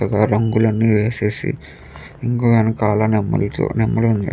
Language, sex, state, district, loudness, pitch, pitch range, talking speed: Telugu, male, Andhra Pradesh, Chittoor, -18 LUFS, 110 Hz, 105-115 Hz, 125 wpm